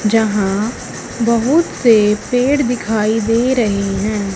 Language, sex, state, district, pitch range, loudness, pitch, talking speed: Hindi, female, Haryana, Charkhi Dadri, 210-245 Hz, -15 LUFS, 225 Hz, 110 wpm